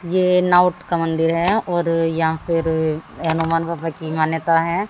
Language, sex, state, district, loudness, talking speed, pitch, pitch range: Hindi, female, Haryana, Jhajjar, -19 LUFS, 170 wpm, 165 Hz, 160-175 Hz